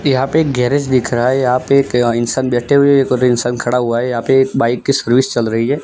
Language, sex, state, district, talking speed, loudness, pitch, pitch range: Hindi, male, Gujarat, Gandhinagar, 290 wpm, -14 LUFS, 125 Hz, 120-135 Hz